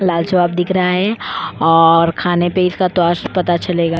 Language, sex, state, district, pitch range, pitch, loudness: Hindi, female, Goa, North and South Goa, 170-185 Hz, 175 Hz, -15 LUFS